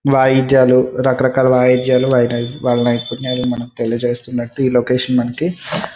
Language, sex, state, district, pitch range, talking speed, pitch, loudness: Telugu, male, Andhra Pradesh, Srikakulam, 120-130 Hz, 100 wpm, 125 Hz, -15 LUFS